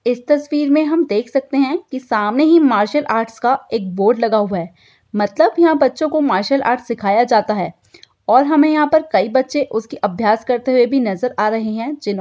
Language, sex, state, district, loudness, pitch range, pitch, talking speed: Hindi, female, Uttar Pradesh, Budaun, -16 LUFS, 215-295 Hz, 250 Hz, 195 wpm